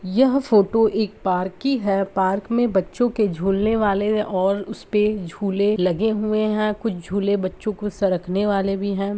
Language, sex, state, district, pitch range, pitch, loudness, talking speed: Hindi, male, Bihar, Saharsa, 195-215 Hz, 205 Hz, -21 LUFS, 170 wpm